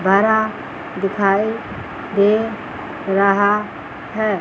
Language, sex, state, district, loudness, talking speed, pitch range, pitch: Hindi, female, Chandigarh, Chandigarh, -18 LUFS, 70 wpm, 195-220 Hz, 205 Hz